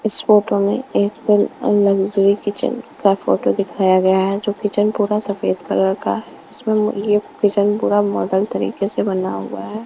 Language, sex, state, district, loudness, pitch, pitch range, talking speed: Hindi, female, Punjab, Kapurthala, -18 LUFS, 205 Hz, 195-210 Hz, 170 wpm